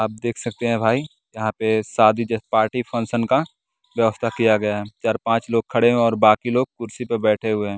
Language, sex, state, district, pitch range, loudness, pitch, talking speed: Hindi, male, Bihar, West Champaran, 110-120 Hz, -20 LUFS, 115 Hz, 215 wpm